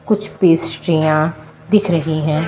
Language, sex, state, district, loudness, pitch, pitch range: Hindi, female, Delhi, New Delhi, -16 LUFS, 165 Hz, 155-175 Hz